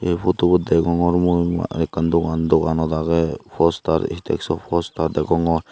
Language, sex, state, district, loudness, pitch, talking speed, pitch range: Chakma, male, Tripura, Unakoti, -20 LUFS, 85 Hz, 145 wpm, 80-85 Hz